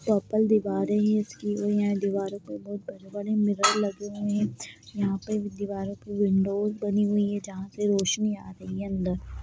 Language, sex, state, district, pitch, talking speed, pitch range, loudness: Hindi, female, Bihar, Darbhanga, 205 Hz, 185 wpm, 195-210 Hz, -27 LUFS